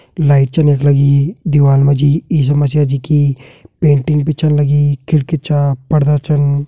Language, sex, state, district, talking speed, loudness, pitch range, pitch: Hindi, male, Uttarakhand, Tehri Garhwal, 170 wpm, -13 LUFS, 140-150 Hz, 145 Hz